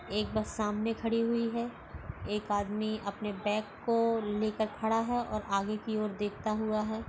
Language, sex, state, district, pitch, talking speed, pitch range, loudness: Hindi, female, Goa, North and South Goa, 215 Hz, 175 wpm, 210-225 Hz, -33 LUFS